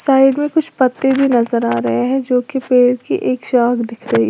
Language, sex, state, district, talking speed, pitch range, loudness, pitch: Hindi, female, Uttar Pradesh, Lalitpur, 235 wpm, 235-270 Hz, -15 LUFS, 250 Hz